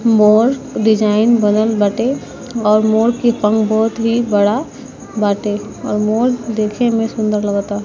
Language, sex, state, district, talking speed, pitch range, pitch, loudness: Bhojpuri, female, Bihar, East Champaran, 140 wpm, 210-235 Hz, 220 Hz, -15 LUFS